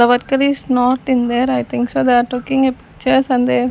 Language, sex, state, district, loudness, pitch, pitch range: English, female, Chandigarh, Chandigarh, -16 LUFS, 250 Hz, 245-265 Hz